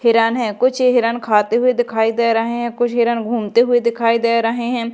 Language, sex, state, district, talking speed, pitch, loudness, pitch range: Hindi, female, Madhya Pradesh, Dhar, 220 wpm, 235 Hz, -16 LUFS, 230-240 Hz